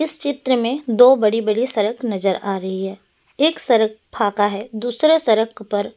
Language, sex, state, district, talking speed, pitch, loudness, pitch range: Hindi, female, Delhi, New Delhi, 170 wpm, 225 Hz, -18 LUFS, 205-255 Hz